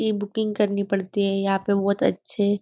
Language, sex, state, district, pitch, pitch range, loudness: Hindi, female, Maharashtra, Nagpur, 200 Hz, 195-210 Hz, -23 LUFS